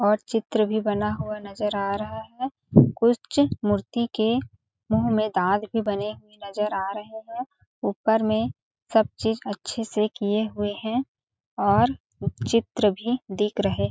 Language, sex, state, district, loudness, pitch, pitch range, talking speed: Hindi, female, Chhattisgarh, Balrampur, -25 LUFS, 215 Hz, 200-225 Hz, 155 wpm